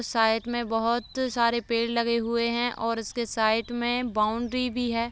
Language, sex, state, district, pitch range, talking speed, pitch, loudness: Hindi, female, Bihar, Begusarai, 230-240 Hz, 175 wpm, 235 Hz, -26 LUFS